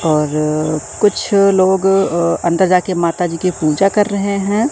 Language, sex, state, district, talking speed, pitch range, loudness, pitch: Hindi, male, Madhya Pradesh, Katni, 165 wpm, 165-195 Hz, -15 LUFS, 180 Hz